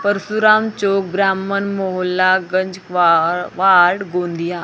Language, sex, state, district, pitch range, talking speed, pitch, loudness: Hindi, female, Maharashtra, Gondia, 180-200 Hz, 75 wpm, 190 Hz, -16 LUFS